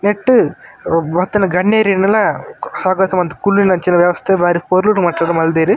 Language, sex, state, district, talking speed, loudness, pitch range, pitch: Tulu, male, Karnataka, Dakshina Kannada, 115 wpm, -14 LUFS, 175-200 Hz, 185 Hz